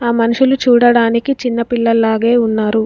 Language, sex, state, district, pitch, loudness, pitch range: Telugu, female, Telangana, Komaram Bheem, 235 Hz, -13 LUFS, 230-240 Hz